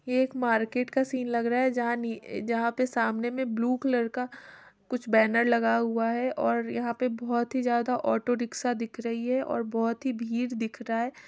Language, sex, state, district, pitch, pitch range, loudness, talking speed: Hindi, female, Bihar, Muzaffarpur, 240 Hz, 230-250 Hz, -28 LUFS, 205 wpm